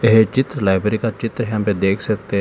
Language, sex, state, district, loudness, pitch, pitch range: Hindi, male, Telangana, Hyderabad, -18 LUFS, 110 Hz, 100-115 Hz